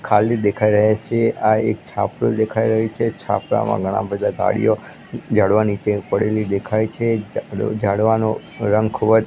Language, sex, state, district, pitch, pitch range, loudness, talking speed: Gujarati, male, Gujarat, Gandhinagar, 110 Hz, 105-110 Hz, -19 LUFS, 150 wpm